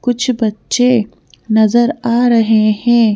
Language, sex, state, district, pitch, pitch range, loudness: Hindi, female, Madhya Pradesh, Bhopal, 235 Hz, 220-245 Hz, -13 LUFS